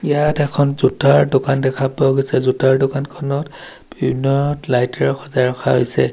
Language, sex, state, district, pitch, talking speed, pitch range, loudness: Assamese, male, Assam, Sonitpur, 135 Hz, 145 wpm, 130-140 Hz, -17 LUFS